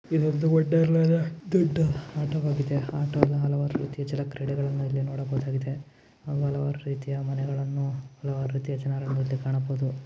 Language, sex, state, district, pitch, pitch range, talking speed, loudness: Kannada, male, Karnataka, Gulbarga, 140 Hz, 135-145 Hz, 130 wpm, -27 LUFS